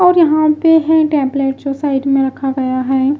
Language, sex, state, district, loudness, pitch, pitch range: Hindi, female, Bihar, Kaimur, -14 LUFS, 275 Hz, 270-310 Hz